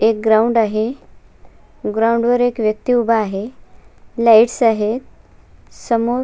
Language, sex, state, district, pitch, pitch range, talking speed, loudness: Marathi, female, Maharashtra, Sindhudurg, 230 Hz, 220-240 Hz, 115 wpm, -16 LUFS